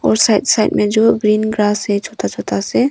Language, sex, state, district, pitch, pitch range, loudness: Hindi, female, Arunachal Pradesh, Longding, 215 Hz, 210-220 Hz, -15 LUFS